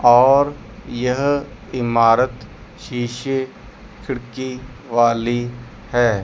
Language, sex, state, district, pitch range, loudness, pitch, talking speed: Hindi, male, Chandigarh, Chandigarh, 120-130 Hz, -19 LUFS, 120 Hz, 65 wpm